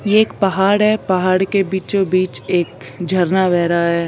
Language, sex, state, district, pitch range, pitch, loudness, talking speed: Hindi, female, Chandigarh, Chandigarh, 175-195 Hz, 185 Hz, -16 LUFS, 190 wpm